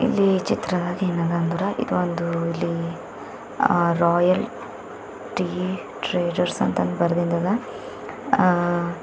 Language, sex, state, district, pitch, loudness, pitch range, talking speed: Kannada, male, Karnataka, Bidar, 175 Hz, -23 LUFS, 170-185 Hz, 95 wpm